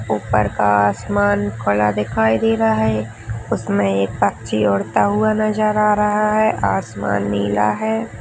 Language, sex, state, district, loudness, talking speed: Hindi, female, Bihar, Purnia, -18 LUFS, 145 wpm